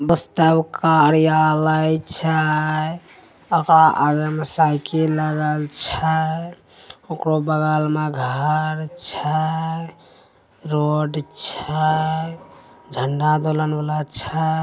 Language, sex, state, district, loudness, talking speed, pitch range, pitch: Angika, male, Bihar, Begusarai, -19 LUFS, 80 wpm, 150-160 Hz, 155 Hz